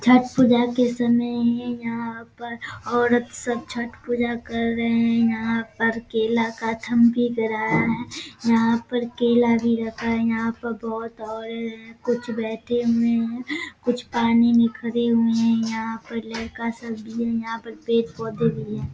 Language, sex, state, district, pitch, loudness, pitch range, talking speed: Hindi, male, Bihar, Samastipur, 230 Hz, -23 LUFS, 230-240 Hz, 160 wpm